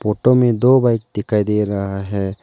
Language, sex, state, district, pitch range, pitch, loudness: Hindi, male, Arunachal Pradesh, Lower Dibang Valley, 100-120 Hz, 105 Hz, -17 LUFS